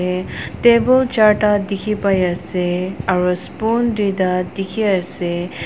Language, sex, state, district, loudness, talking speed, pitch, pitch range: Nagamese, female, Nagaland, Dimapur, -17 LUFS, 105 wpm, 195 Hz, 180-210 Hz